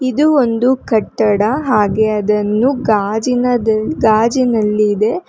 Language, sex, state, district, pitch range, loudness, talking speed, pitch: Kannada, female, Karnataka, Bangalore, 210-250 Hz, -14 LUFS, 80 wpm, 220 Hz